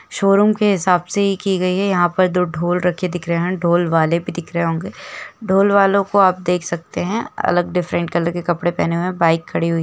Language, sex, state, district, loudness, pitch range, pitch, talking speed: Hindi, female, Jharkhand, Jamtara, -17 LUFS, 170-190 Hz, 180 Hz, 250 wpm